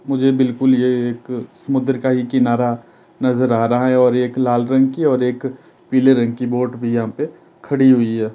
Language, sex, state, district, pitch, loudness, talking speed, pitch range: Hindi, male, Himachal Pradesh, Shimla, 125 Hz, -17 LUFS, 210 wpm, 120-130 Hz